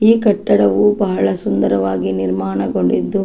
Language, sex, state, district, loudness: Kannada, female, Karnataka, Dakshina Kannada, -16 LUFS